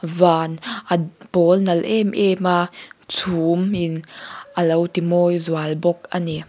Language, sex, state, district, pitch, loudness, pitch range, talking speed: Mizo, female, Mizoram, Aizawl, 175 Hz, -19 LUFS, 165-180 Hz, 165 wpm